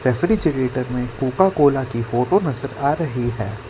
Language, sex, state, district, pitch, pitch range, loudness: Hindi, male, Gujarat, Valsad, 130 Hz, 125-145 Hz, -20 LUFS